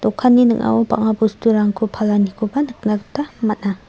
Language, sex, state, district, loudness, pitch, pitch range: Garo, female, Meghalaya, South Garo Hills, -17 LUFS, 215 Hz, 205-235 Hz